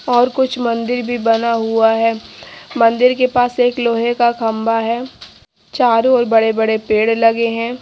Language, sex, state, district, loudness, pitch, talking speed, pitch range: Hindi, female, Haryana, Jhajjar, -15 LUFS, 230 Hz, 170 wpm, 225-245 Hz